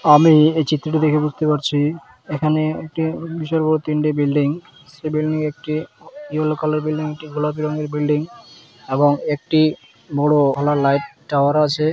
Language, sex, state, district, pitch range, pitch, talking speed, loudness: Bengali, male, West Bengal, Dakshin Dinajpur, 150-155 Hz, 150 Hz, 160 wpm, -19 LUFS